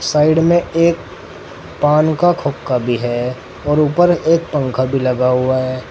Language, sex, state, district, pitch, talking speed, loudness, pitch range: Hindi, male, Uttar Pradesh, Saharanpur, 150 Hz, 150 wpm, -15 LUFS, 130-165 Hz